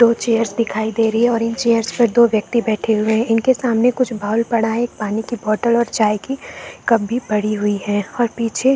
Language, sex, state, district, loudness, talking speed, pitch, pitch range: Hindi, female, Chhattisgarh, Bastar, -18 LUFS, 255 wpm, 230 Hz, 220-235 Hz